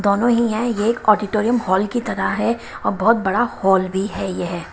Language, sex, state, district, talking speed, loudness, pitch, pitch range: Hindi, female, Himachal Pradesh, Shimla, 215 wpm, -19 LUFS, 210 Hz, 190-230 Hz